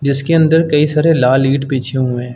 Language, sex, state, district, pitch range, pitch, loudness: Hindi, male, Uttar Pradesh, Muzaffarnagar, 130-160 Hz, 140 Hz, -13 LUFS